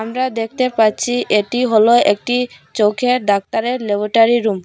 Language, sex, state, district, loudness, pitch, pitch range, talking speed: Bengali, female, Assam, Hailakandi, -16 LUFS, 225 Hz, 210-245 Hz, 130 wpm